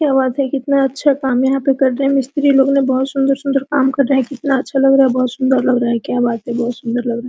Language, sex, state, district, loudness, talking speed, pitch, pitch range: Hindi, female, Jharkhand, Sahebganj, -15 LUFS, 320 wpm, 270 Hz, 255-275 Hz